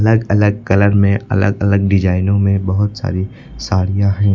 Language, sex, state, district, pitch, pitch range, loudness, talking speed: Hindi, male, Uttar Pradesh, Lucknow, 100 Hz, 95-105 Hz, -15 LUFS, 165 wpm